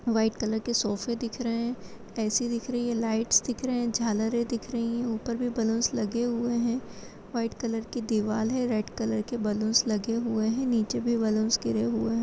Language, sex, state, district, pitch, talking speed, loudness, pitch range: Hindi, female, Chhattisgarh, Rajnandgaon, 230 Hz, 210 wpm, -28 LUFS, 220-240 Hz